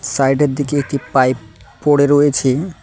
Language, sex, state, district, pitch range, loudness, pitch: Bengali, male, West Bengal, Cooch Behar, 130-145 Hz, -15 LUFS, 140 Hz